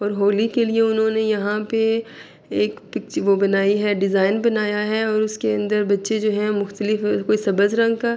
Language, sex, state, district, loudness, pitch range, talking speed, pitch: Urdu, female, Andhra Pradesh, Anantapur, -20 LUFS, 200-220 Hz, 170 wpm, 210 Hz